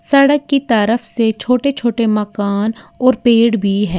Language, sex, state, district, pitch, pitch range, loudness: Hindi, female, Uttar Pradesh, Lalitpur, 230 Hz, 210-255 Hz, -15 LUFS